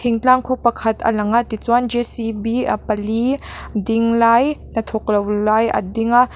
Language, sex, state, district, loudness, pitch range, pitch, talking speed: Mizo, female, Mizoram, Aizawl, -18 LUFS, 220-240 Hz, 230 Hz, 190 wpm